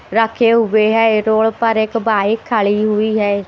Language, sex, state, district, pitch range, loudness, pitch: Hindi, female, Chhattisgarh, Raipur, 215-225 Hz, -14 LUFS, 220 Hz